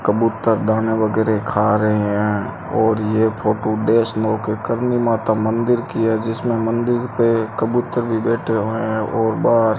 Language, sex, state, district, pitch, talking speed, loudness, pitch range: Hindi, male, Rajasthan, Bikaner, 110 Hz, 165 wpm, -18 LUFS, 110-115 Hz